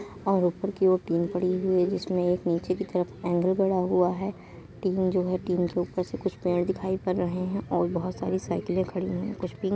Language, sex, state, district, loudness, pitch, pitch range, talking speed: Hindi, female, Uttar Pradesh, Muzaffarnagar, -27 LUFS, 185 Hz, 180-190 Hz, 245 wpm